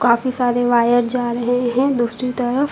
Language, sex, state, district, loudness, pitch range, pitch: Hindi, female, Uttar Pradesh, Lucknow, -18 LUFS, 240-255 Hz, 245 Hz